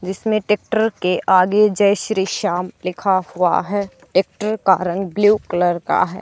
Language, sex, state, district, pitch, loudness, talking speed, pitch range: Hindi, female, Haryana, Charkhi Dadri, 195 Hz, -18 LUFS, 165 wpm, 180-210 Hz